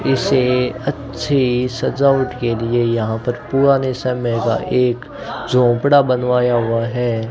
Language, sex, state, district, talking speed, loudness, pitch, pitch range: Hindi, male, Rajasthan, Bikaner, 125 wpm, -17 LUFS, 125 Hz, 120-135 Hz